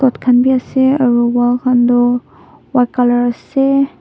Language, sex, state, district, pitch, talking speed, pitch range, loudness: Nagamese, female, Nagaland, Dimapur, 250 Hz, 150 wpm, 245-260 Hz, -13 LUFS